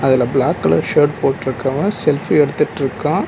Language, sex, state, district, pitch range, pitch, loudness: Tamil, male, Tamil Nadu, Nilgiris, 135-165 Hz, 135 Hz, -16 LUFS